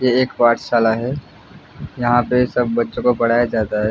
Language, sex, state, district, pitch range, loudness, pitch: Hindi, male, Jharkhand, Jamtara, 115-125 Hz, -17 LUFS, 120 Hz